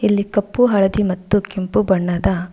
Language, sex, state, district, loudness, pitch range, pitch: Kannada, female, Karnataka, Bangalore, -18 LUFS, 185-205 Hz, 200 Hz